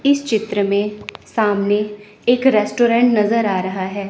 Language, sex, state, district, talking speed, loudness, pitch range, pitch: Hindi, female, Chandigarh, Chandigarh, 145 wpm, -17 LUFS, 200-230 Hz, 210 Hz